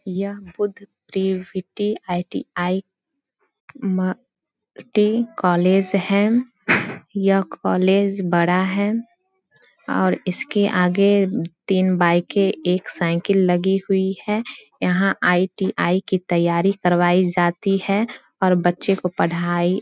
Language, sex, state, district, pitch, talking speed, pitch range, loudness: Hindi, female, Bihar, Samastipur, 190 Hz, 105 wpm, 180-200 Hz, -20 LUFS